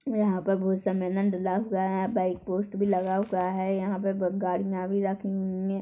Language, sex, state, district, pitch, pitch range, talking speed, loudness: Hindi, female, Chhattisgarh, Korba, 190 Hz, 185-195 Hz, 225 wpm, -28 LUFS